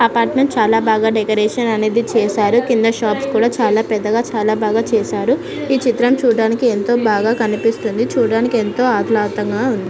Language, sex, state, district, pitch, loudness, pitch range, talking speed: Telugu, female, Andhra Pradesh, Anantapur, 225 Hz, -16 LUFS, 215-240 Hz, 140 wpm